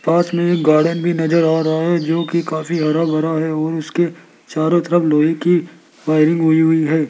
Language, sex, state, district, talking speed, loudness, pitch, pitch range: Hindi, male, Rajasthan, Jaipur, 210 wpm, -16 LUFS, 160 Hz, 155-170 Hz